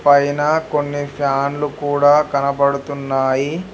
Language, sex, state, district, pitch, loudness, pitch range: Telugu, male, Telangana, Hyderabad, 145 Hz, -17 LUFS, 140-145 Hz